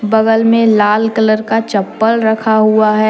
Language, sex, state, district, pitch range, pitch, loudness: Hindi, female, Jharkhand, Deoghar, 215-225 Hz, 220 Hz, -12 LUFS